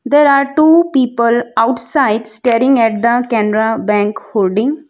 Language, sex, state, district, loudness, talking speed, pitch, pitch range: English, female, Gujarat, Valsad, -13 LUFS, 135 wpm, 235 Hz, 220-275 Hz